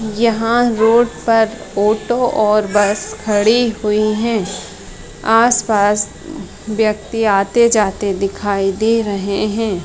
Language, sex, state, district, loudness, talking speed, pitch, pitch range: Hindi, female, Bihar, Madhepura, -15 LUFS, 130 wpm, 215 Hz, 205-225 Hz